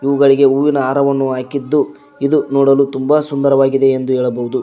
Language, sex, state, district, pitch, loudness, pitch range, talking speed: Kannada, male, Karnataka, Koppal, 140 Hz, -14 LUFS, 135-140 Hz, 130 wpm